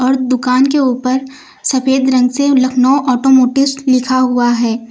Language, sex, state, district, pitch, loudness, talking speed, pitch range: Hindi, female, Uttar Pradesh, Lucknow, 260 Hz, -12 LUFS, 145 wpm, 250-265 Hz